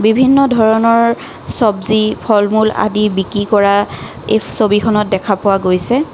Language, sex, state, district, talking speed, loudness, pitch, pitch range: Assamese, female, Assam, Kamrup Metropolitan, 115 wpm, -13 LUFS, 215 Hz, 205-225 Hz